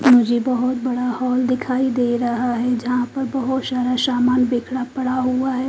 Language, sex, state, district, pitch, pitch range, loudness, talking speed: Hindi, female, Haryana, Charkhi Dadri, 255 Hz, 245-255 Hz, -20 LUFS, 180 wpm